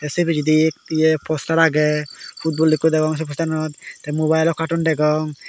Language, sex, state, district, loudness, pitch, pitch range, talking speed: Chakma, male, Tripura, Dhalai, -19 LUFS, 155 Hz, 155-160 Hz, 165 wpm